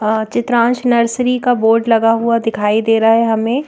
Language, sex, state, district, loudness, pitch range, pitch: Hindi, female, Madhya Pradesh, Bhopal, -14 LUFS, 225-240 Hz, 230 Hz